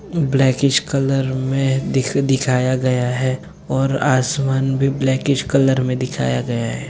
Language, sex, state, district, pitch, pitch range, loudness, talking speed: Hindi, male, Jharkhand, Sahebganj, 135 Hz, 130-135 Hz, -18 LUFS, 130 wpm